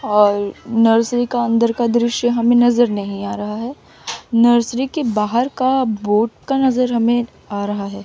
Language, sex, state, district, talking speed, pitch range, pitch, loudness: Hindi, female, Chandigarh, Chandigarh, 170 wpm, 210-240 Hz, 235 Hz, -17 LUFS